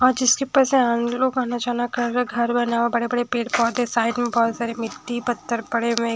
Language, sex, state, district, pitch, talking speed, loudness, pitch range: Hindi, female, Odisha, Sambalpur, 240 Hz, 265 wpm, -21 LUFS, 235-245 Hz